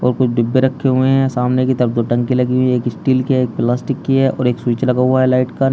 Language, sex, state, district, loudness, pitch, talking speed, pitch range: Hindi, male, Uttar Pradesh, Shamli, -15 LUFS, 130 Hz, 315 wpm, 125-130 Hz